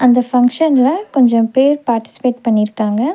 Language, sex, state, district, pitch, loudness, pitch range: Tamil, female, Tamil Nadu, Nilgiris, 250 Hz, -14 LUFS, 230-265 Hz